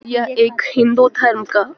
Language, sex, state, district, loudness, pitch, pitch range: Hindi, female, Uttar Pradesh, Budaun, -15 LUFS, 235 Hz, 230-245 Hz